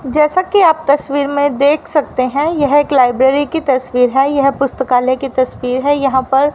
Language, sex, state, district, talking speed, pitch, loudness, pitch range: Hindi, female, Haryana, Rohtak, 190 wpm, 275 Hz, -13 LUFS, 260-290 Hz